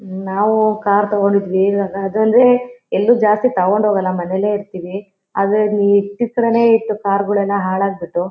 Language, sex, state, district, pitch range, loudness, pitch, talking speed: Kannada, female, Karnataka, Shimoga, 195-215 Hz, -16 LUFS, 200 Hz, 130 wpm